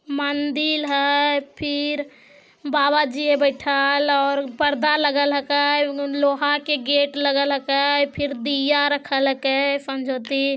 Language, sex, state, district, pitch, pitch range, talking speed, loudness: Magahi, female, Bihar, Jamui, 285 Hz, 280-290 Hz, 125 wpm, -20 LUFS